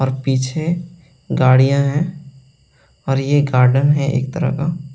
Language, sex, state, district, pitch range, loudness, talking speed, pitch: Hindi, male, Delhi, New Delhi, 135-150 Hz, -17 LUFS, 145 wpm, 140 Hz